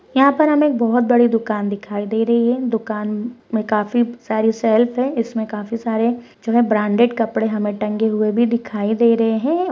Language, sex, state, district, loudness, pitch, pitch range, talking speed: Hindi, female, Rajasthan, Churu, -18 LUFS, 230 Hz, 215-240 Hz, 180 wpm